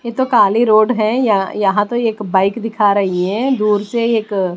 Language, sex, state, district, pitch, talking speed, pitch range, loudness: Hindi, female, Bihar, West Champaran, 215 Hz, 195 wpm, 200-235 Hz, -15 LUFS